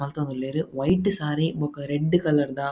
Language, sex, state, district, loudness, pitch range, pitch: Tulu, male, Karnataka, Dakshina Kannada, -25 LUFS, 140-160 Hz, 150 Hz